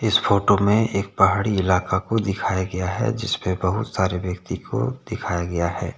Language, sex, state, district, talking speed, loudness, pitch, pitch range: Hindi, male, Jharkhand, Deoghar, 190 wpm, -22 LUFS, 100 Hz, 90-110 Hz